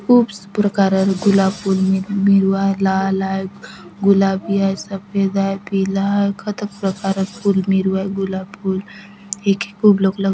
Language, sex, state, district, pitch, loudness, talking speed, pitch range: Halbi, female, Chhattisgarh, Bastar, 195 Hz, -18 LUFS, 165 wpm, 190-200 Hz